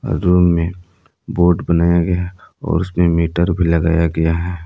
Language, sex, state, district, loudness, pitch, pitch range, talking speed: Hindi, male, Jharkhand, Palamu, -16 LUFS, 85 Hz, 85-90 Hz, 165 wpm